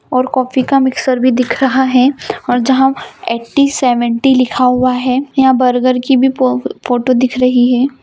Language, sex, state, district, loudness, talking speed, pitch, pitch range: Hindi, female, Bihar, Purnia, -12 LUFS, 180 wpm, 255 Hz, 250-265 Hz